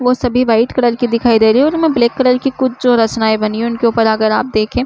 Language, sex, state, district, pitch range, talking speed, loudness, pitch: Hindi, female, Uttar Pradesh, Budaun, 225-250 Hz, 320 wpm, -13 LUFS, 240 Hz